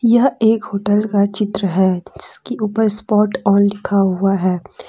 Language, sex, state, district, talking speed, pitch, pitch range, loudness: Hindi, female, Jharkhand, Deoghar, 160 wpm, 200 Hz, 195-215 Hz, -16 LUFS